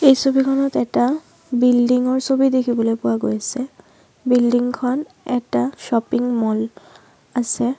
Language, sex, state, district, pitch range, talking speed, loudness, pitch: Assamese, female, Assam, Sonitpur, 230-260 Hz, 115 wpm, -19 LUFS, 245 Hz